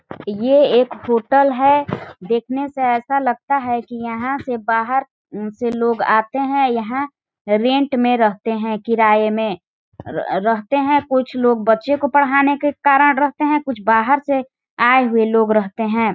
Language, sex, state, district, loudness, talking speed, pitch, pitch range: Hindi, female, Chhattisgarh, Balrampur, -17 LUFS, 165 wpm, 245 Hz, 225-275 Hz